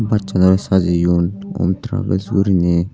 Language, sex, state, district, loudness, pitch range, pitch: Chakma, male, Tripura, Unakoti, -17 LUFS, 90-100 Hz, 95 Hz